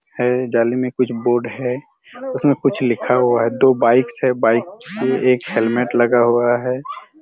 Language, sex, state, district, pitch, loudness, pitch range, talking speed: Hindi, male, Chhattisgarh, Raigarh, 125 Hz, -17 LUFS, 120-130 Hz, 175 wpm